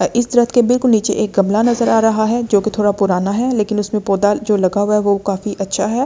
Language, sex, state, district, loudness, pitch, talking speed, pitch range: Hindi, female, Delhi, New Delhi, -15 LUFS, 210 Hz, 265 wpm, 200-230 Hz